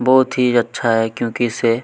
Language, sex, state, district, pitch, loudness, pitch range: Hindi, male, Chhattisgarh, Kabirdham, 120 Hz, -17 LUFS, 115-125 Hz